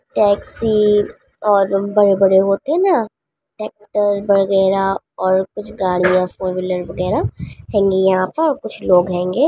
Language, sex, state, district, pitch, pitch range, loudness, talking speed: Hindi, female, Bihar, Jamui, 195 Hz, 185-210 Hz, -16 LUFS, 135 wpm